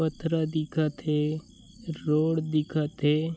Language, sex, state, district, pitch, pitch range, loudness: Chhattisgarhi, male, Chhattisgarh, Bilaspur, 155 Hz, 150-160 Hz, -28 LUFS